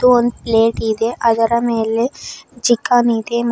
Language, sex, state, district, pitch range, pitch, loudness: Kannada, female, Karnataka, Bidar, 225-240 Hz, 235 Hz, -16 LUFS